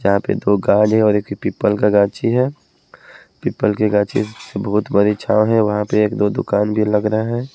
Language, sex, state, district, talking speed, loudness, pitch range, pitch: Hindi, male, Haryana, Jhajjar, 225 wpm, -17 LUFS, 105-110 Hz, 105 Hz